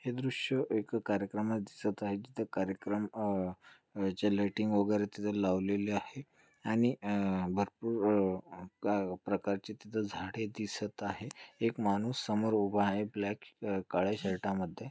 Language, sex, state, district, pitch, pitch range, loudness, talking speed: Marathi, male, Maharashtra, Dhule, 105 Hz, 100-110 Hz, -35 LUFS, 145 wpm